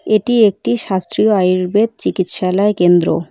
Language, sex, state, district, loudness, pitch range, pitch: Bengali, female, West Bengal, Cooch Behar, -14 LUFS, 185-215 Hz, 200 Hz